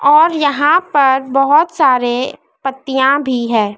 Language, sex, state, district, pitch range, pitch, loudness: Hindi, female, Madhya Pradesh, Dhar, 255-290 Hz, 270 Hz, -13 LUFS